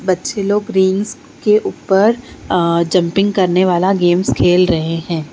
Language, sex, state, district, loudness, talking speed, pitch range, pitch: Hindi, female, Bihar, Patna, -15 LUFS, 145 wpm, 175-205 Hz, 185 Hz